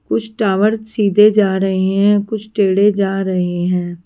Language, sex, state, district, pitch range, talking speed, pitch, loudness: Hindi, female, Maharashtra, Washim, 190-210 Hz, 160 wpm, 200 Hz, -15 LUFS